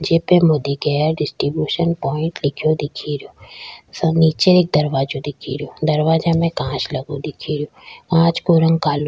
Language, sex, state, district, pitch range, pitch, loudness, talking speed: Rajasthani, female, Rajasthan, Churu, 145-165 Hz, 155 Hz, -18 LUFS, 170 wpm